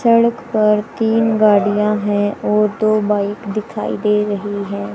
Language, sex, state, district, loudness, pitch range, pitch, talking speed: Hindi, female, Haryana, Rohtak, -16 LUFS, 205-215 Hz, 210 Hz, 145 wpm